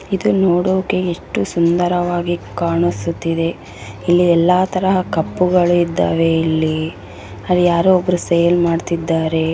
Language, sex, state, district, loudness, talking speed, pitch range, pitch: Kannada, female, Karnataka, Bellary, -16 LUFS, 120 wpm, 165-180 Hz, 175 Hz